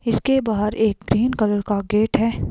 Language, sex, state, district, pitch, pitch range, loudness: Hindi, female, Himachal Pradesh, Shimla, 220 Hz, 210-235 Hz, -20 LUFS